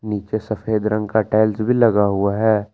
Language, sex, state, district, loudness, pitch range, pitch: Hindi, male, Jharkhand, Palamu, -18 LUFS, 105-110 Hz, 110 Hz